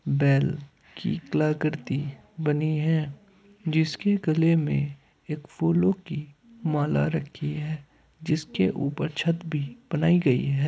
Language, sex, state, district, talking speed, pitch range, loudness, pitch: Hindi, male, Uttar Pradesh, Hamirpur, 125 wpm, 140-165 Hz, -26 LUFS, 155 Hz